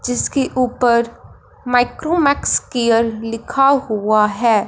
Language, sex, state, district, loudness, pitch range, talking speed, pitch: Hindi, female, Punjab, Fazilka, -16 LUFS, 225-260 Hz, 90 wpm, 245 Hz